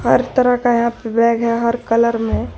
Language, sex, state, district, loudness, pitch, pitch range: Hindi, female, Jharkhand, Garhwa, -16 LUFS, 235 Hz, 230-235 Hz